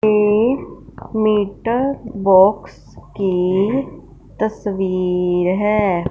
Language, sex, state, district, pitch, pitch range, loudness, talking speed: Hindi, female, Punjab, Fazilka, 200 Hz, 185-215 Hz, -17 LUFS, 60 wpm